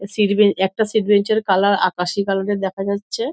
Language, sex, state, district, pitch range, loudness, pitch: Bengali, female, West Bengal, Dakshin Dinajpur, 195-210 Hz, -18 LUFS, 200 Hz